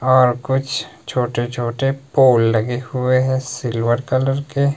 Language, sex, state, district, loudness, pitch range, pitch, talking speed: Hindi, male, Himachal Pradesh, Shimla, -18 LUFS, 120-135 Hz, 130 Hz, 140 wpm